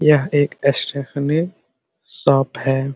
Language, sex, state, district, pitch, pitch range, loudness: Hindi, male, Bihar, Muzaffarpur, 140 Hz, 135-150 Hz, -19 LUFS